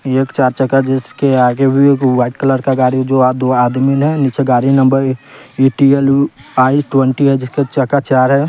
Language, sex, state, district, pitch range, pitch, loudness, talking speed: Hindi, male, Bihar, West Champaran, 130-140 Hz, 135 Hz, -13 LUFS, 200 wpm